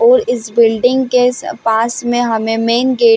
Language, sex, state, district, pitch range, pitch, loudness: Hindi, female, Chhattisgarh, Bilaspur, 230-255 Hz, 240 Hz, -14 LUFS